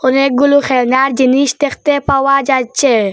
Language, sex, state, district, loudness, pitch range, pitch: Bengali, female, Assam, Hailakandi, -12 LUFS, 260-280 Hz, 270 Hz